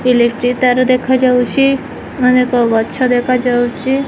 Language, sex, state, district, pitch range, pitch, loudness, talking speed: Odia, female, Odisha, Khordha, 245-255 Hz, 250 Hz, -13 LUFS, 90 wpm